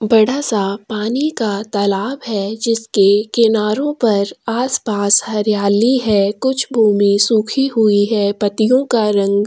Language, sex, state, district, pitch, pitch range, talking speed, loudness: Hindi, female, Chhattisgarh, Kabirdham, 215 Hz, 205-235 Hz, 125 wpm, -15 LUFS